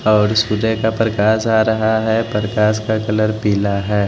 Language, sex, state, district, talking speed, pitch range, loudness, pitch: Hindi, male, Bihar, West Champaran, 175 wpm, 105-110 Hz, -16 LUFS, 110 Hz